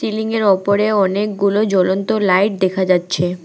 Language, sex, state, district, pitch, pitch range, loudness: Bengali, female, West Bengal, Alipurduar, 200 Hz, 185-210 Hz, -16 LUFS